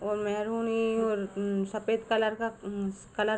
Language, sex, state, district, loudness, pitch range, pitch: Hindi, female, Jharkhand, Sahebganj, -30 LUFS, 200-225 Hz, 215 Hz